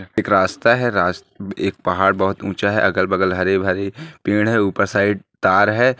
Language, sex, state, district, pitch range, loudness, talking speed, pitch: Hindi, male, Rajasthan, Nagaur, 95-105 Hz, -18 LUFS, 160 wpm, 100 Hz